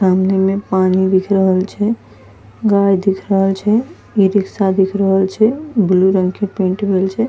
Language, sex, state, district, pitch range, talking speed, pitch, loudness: Angika, female, Bihar, Bhagalpur, 190-205 Hz, 165 wpm, 195 Hz, -15 LUFS